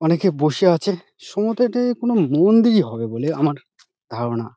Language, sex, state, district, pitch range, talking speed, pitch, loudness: Bengali, male, West Bengal, Dakshin Dinajpur, 145-210 Hz, 170 wpm, 175 Hz, -19 LUFS